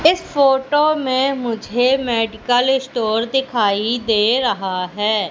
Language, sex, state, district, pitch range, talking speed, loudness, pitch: Hindi, female, Madhya Pradesh, Katni, 220-265 Hz, 115 wpm, -17 LUFS, 245 Hz